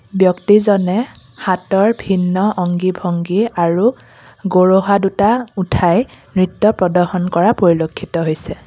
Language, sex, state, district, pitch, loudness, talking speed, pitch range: Assamese, female, Assam, Kamrup Metropolitan, 185 Hz, -15 LUFS, 95 wpm, 180-205 Hz